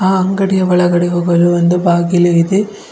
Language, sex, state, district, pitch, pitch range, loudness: Kannada, female, Karnataka, Bidar, 175 Hz, 175-190 Hz, -12 LUFS